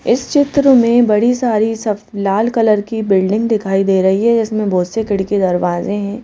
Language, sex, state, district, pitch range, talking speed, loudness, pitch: Hindi, female, Madhya Pradesh, Bhopal, 195-230 Hz, 190 wpm, -14 LUFS, 215 Hz